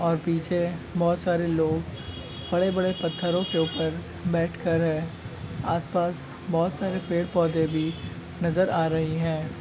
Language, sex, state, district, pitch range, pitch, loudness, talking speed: Hindi, male, Bihar, Sitamarhi, 160-175 Hz, 170 Hz, -26 LUFS, 125 wpm